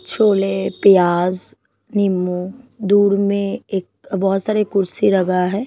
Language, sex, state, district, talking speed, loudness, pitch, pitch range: Hindi, female, Punjab, Pathankot, 115 wpm, -17 LUFS, 195 Hz, 185-205 Hz